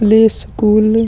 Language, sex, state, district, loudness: Hindi, male, Chhattisgarh, Sukma, -12 LUFS